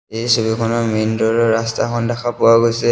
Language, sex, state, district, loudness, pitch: Assamese, male, Assam, Sonitpur, -16 LUFS, 115 Hz